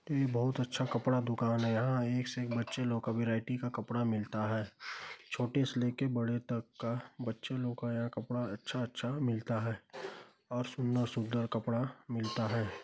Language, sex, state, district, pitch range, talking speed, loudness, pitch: Hindi, male, Chhattisgarh, Bastar, 115-125 Hz, 165 wpm, -35 LUFS, 120 Hz